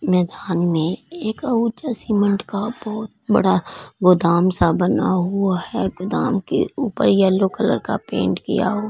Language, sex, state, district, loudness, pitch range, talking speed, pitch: Hindi, female, Punjab, Fazilka, -19 LUFS, 180-225 Hz, 150 wpm, 200 Hz